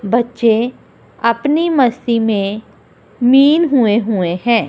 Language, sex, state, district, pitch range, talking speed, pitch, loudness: Hindi, female, Punjab, Kapurthala, 220-260 Hz, 100 wpm, 235 Hz, -14 LUFS